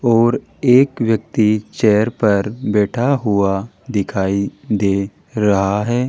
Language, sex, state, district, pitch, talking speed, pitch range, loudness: Hindi, male, Rajasthan, Jaipur, 105 Hz, 110 wpm, 100-120 Hz, -17 LUFS